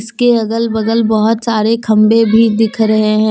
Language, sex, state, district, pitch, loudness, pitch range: Hindi, female, Jharkhand, Deoghar, 225 Hz, -12 LUFS, 215-230 Hz